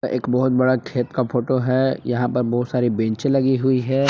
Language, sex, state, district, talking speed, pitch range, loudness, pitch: Hindi, male, Jharkhand, Palamu, 220 wpm, 125-130 Hz, -20 LUFS, 130 Hz